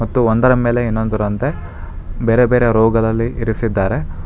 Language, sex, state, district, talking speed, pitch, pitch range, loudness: Kannada, male, Karnataka, Bangalore, 115 wpm, 115 Hz, 100-120 Hz, -16 LUFS